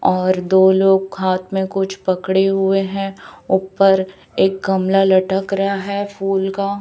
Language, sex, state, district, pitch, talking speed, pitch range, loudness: Hindi, female, Chhattisgarh, Raipur, 190 Hz, 150 wpm, 190-195 Hz, -17 LUFS